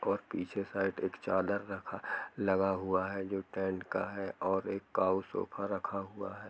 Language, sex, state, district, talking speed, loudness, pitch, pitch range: Hindi, male, Jharkhand, Jamtara, 185 wpm, -35 LUFS, 95 Hz, 95-100 Hz